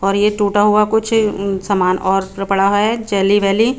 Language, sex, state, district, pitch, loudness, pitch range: Hindi, female, Chandigarh, Chandigarh, 200 Hz, -15 LUFS, 195-210 Hz